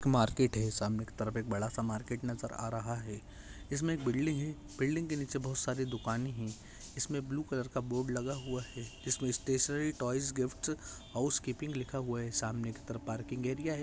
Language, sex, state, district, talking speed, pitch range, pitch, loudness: Hindi, male, Maharashtra, Aurangabad, 195 wpm, 115-135 Hz, 125 Hz, -36 LUFS